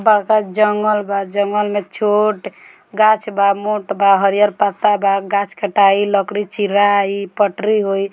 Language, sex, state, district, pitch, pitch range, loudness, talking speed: Bhojpuri, female, Bihar, Muzaffarpur, 205 Hz, 200-210 Hz, -16 LUFS, 140 wpm